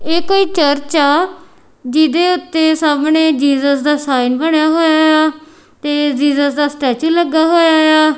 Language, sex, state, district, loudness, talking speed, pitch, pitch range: Punjabi, female, Punjab, Kapurthala, -13 LUFS, 160 wpm, 310 Hz, 290-320 Hz